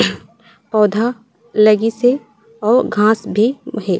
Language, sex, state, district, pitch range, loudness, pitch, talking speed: Chhattisgarhi, female, Chhattisgarh, Raigarh, 210-230 Hz, -16 LUFS, 220 Hz, 105 wpm